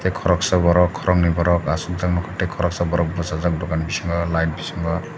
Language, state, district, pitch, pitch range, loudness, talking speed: Kokborok, Tripura, Dhalai, 85 Hz, 85-90 Hz, -20 LUFS, 160 wpm